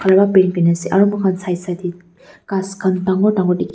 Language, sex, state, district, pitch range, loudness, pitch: Nagamese, female, Nagaland, Dimapur, 180-195 Hz, -16 LUFS, 190 Hz